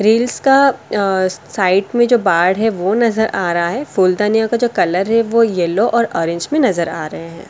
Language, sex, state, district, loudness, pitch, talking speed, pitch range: Hindi, female, Delhi, New Delhi, -15 LUFS, 205 Hz, 210 wpm, 180-235 Hz